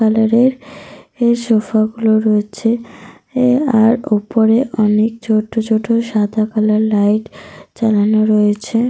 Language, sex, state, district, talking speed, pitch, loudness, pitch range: Bengali, female, Jharkhand, Sahebganj, 100 wpm, 220 Hz, -15 LUFS, 215-230 Hz